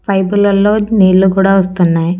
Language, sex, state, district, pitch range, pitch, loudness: Telugu, female, Andhra Pradesh, Annamaya, 185-200 Hz, 195 Hz, -11 LUFS